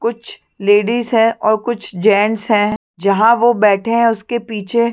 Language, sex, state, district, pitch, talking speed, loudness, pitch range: Hindi, female, Chhattisgarh, Sarguja, 225 Hz, 160 wpm, -15 LUFS, 210-235 Hz